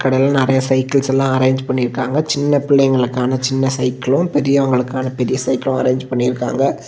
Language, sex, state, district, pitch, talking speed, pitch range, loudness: Tamil, male, Tamil Nadu, Kanyakumari, 130 Hz, 140 wpm, 130-135 Hz, -16 LUFS